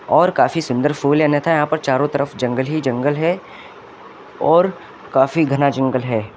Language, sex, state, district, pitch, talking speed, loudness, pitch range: Hindi, male, Uttar Pradesh, Lucknow, 145 Hz, 180 wpm, -17 LUFS, 130-165 Hz